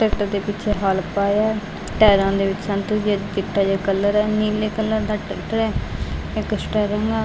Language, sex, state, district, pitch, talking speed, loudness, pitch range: Punjabi, female, Punjab, Fazilka, 205 Hz, 190 wpm, -21 LUFS, 195-215 Hz